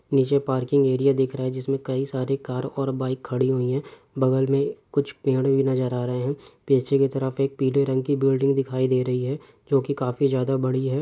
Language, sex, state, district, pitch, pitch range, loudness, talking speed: Hindi, male, Andhra Pradesh, Guntur, 135 Hz, 130-135 Hz, -23 LUFS, 230 wpm